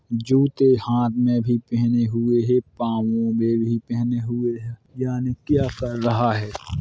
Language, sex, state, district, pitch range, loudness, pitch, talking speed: Hindi, male, Uttar Pradesh, Hamirpur, 115-125 Hz, -22 LUFS, 120 Hz, 165 wpm